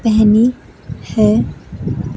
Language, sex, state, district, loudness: Hindi, female, Himachal Pradesh, Shimla, -14 LUFS